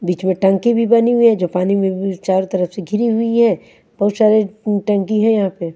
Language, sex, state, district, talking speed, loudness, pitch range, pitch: Hindi, female, Haryana, Charkhi Dadri, 230 wpm, -16 LUFS, 190-225 Hz, 200 Hz